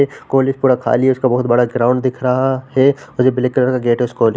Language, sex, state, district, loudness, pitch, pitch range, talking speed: Hindi, male, Bihar, Samastipur, -15 LUFS, 130 Hz, 125-130 Hz, 275 wpm